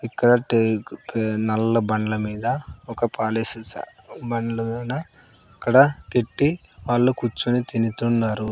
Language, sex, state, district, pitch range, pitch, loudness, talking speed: Telugu, male, Andhra Pradesh, Sri Satya Sai, 110-120 Hz, 115 Hz, -22 LUFS, 100 wpm